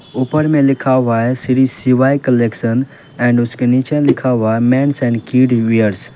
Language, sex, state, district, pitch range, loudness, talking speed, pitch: Hindi, male, Uttar Pradesh, Lalitpur, 120-135 Hz, -14 LUFS, 185 wpm, 125 Hz